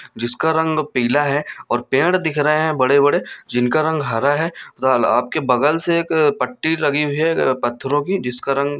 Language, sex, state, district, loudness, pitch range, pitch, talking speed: Hindi, male, Bihar, Darbhanga, -18 LUFS, 130-160 Hz, 145 Hz, 185 wpm